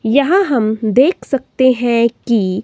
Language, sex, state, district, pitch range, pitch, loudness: Hindi, female, Himachal Pradesh, Shimla, 230-270 Hz, 245 Hz, -14 LUFS